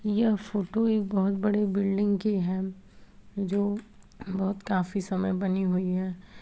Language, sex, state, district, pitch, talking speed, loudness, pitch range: Hindi, female, Bihar, Vaishali, 200 Hz, 140 wpm, -28 LUFS, 190-210 Hz